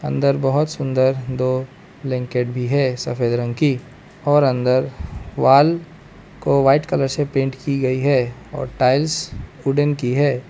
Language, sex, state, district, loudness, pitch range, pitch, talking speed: Hindi, male, Arunachal Pradesh, Lower Dibang Valley, -19 LUFS, 125-145 Hz, 135 Hz, 150 wpm